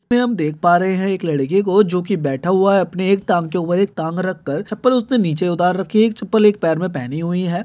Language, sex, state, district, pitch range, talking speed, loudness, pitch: Hindi, male, Chhattisgarh, Kabirdham, 175-205 Hz, 95 wpm, -17 LUFS, 185 Hz